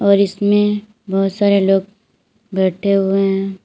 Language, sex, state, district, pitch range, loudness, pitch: Hindi, female, Uttar Pradesh, Lalitpur, 195-205 Hz, -16 LUFS, 195 Hz